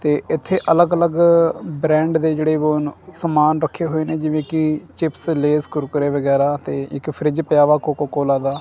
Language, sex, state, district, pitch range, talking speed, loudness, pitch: Punjabi, male, Punjab, Kapurthala, 145-160 Hz, 175 wpm, -18 LUFS, 155 Hz